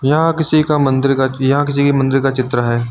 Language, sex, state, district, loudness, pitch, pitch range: Hindi, male, Uttar Pradesh, Lucknow, -15 LUFS, 135 Hz, 130-145 Hz